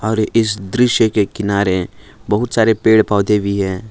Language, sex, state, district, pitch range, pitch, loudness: Hindi, male, Jharkhand, Palamu, 100-110 Hz, 105 Hz, -15 LUFS